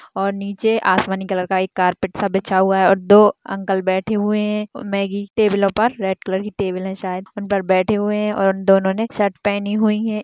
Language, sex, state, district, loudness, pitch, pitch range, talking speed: Hindi, female, Uttarakhand, Tehri Garhwal, -18 LUFS, 200 Hz, 190-210 Hz, 220 wpm